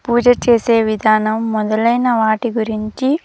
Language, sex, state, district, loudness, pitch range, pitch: Telugu, female, Andhra Pradesh, Sri Satya Sai, -15 LUFS, 215-240 Hz, 225 Hz